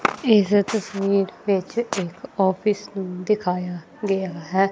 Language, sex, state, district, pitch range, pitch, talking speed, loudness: Punjabi, female, Punjab, Kapurthala, 185-210 Hz, 195 Hz, 115 wpm, -23 LUFS